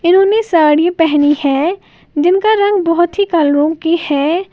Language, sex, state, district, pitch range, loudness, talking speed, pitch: Hindi, female, Uttar Pradesh, Lalitpur, 300-380 Hz, -12 LUFS, 160 wpm, 335 Hz